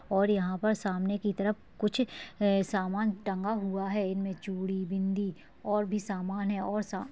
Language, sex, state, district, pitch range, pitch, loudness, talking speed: Hindi, female, Uttarakhand, Tehri Garhwal, 190-210 Hz, 200 Hz, -31 LUFS, 185 wpm